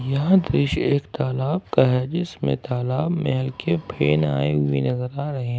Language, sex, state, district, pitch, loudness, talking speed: Hindi, male, Jharkhand, Ranchi, 130 Hz, -22 LUFS, 180 wpm